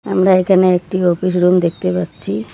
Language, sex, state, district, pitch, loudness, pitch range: Bengali, female, West Bengal, Cooch Behar, 180 Hz, -15 LUFS, 175-185 Hz